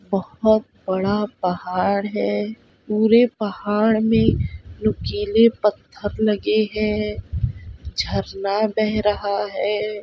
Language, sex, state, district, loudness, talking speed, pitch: Hindi, female, Bihar, Saharsa, -21 LUFS, 90 wpm, 205 Hz